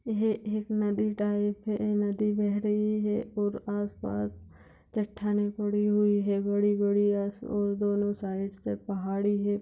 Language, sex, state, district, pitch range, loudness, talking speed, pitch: Hindi, female, Jharkhand, Sahebganj, 200-210 Hz, -29 LUFS, 155 wpm, 205 Hz